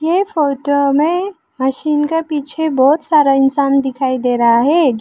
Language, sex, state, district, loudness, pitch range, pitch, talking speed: Hindi, female, Arunachal Pradesh, Lower Dibang Valley, -14 LUFS, 270-315 Hz, 285 Hz, 155 wpm